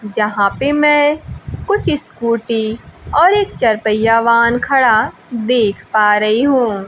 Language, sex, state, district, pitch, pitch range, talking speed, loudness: Hindi, female, Bihar, Kaimur, 235 Hz, 215-280 Hz, 130 wpm, -14 LUFS